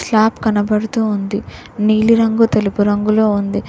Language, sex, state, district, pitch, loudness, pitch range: Telugu, female, Telangana, Mahabubabad, 215 Hz, -15 LUFS, 205-220 Hz